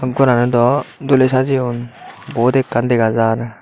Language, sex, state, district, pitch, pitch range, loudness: Chakma, male, Tripura, Dhalai, 120 Hz, 120-130 Hz, -15 LUFS